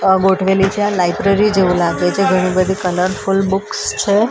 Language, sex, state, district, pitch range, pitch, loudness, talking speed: Gujarati, female, Maharashtra, Mumbai Suburban, 185-195 Hz, 190 Hz, -15 LUFS, 155 wpm